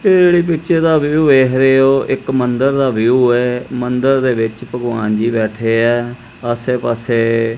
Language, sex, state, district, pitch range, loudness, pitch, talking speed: Punjabi, male, Punjab, Kapurthala, 115-135 Hz, -14 LUFS, 125 Hz, 180 wpm